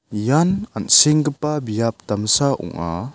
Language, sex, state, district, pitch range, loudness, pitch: Garo, male, Meghalaya, South Garo Hills, 105-150 Hz, -18 LUFS, 125 Hz